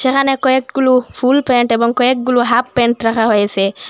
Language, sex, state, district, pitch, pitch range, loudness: Bengali, female, Assam, Hailakandi, 250 Hz, 230-260 Hz, -14 LUFS